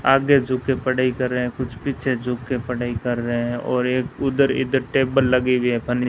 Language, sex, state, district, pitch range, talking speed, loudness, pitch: Hindi, female, Rajasthan, Bikaner, 125-135 Hz, 245 wpm, -21 LUFS, 125 Hz